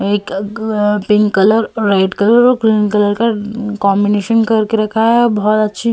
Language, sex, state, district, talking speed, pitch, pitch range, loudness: Hindi, female, Uttar Pradesh, Hamirpur, 205 wpm, 215 Hz, 205-225 Hz, -13 LUFS